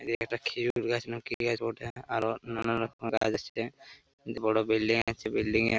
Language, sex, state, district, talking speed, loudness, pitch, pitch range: Bengali, male, West Bengal, Paschim Medinipur, 195 wpm, -31 LUFS, 115 Hz, 110-120 Hz